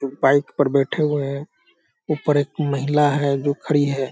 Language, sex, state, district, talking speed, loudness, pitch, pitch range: Hindi, male, Bihar, Sitamarhi, 190 wpm, -20 LUFS, 145 Hz, 140-145 Hz